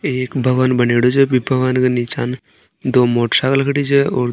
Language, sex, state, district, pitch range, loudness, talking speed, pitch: Marwari, male, Rajasthan, Nagaur, 125-135 Hz, -16 LUFS, 210 wpm, 130 Hz